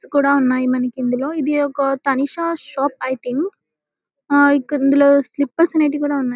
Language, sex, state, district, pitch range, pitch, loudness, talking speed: Telugu, female, Telangana, Karimnagar, 265-290 Hz, 280 Hz, -18 LUFS, 170 wpm